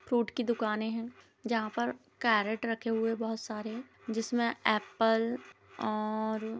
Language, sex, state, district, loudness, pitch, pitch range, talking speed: Hindi, female, Chhattisgarh, Bilaspur, -32 LUFS, 225 Hz, 220-235 Hz, 135 wpm